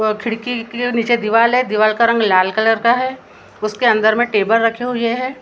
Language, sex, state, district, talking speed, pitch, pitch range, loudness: Hindi, female, Maharashtra, Gondia, 220 wpm, 230 Hz, 220-240 Hz, -16 LUFS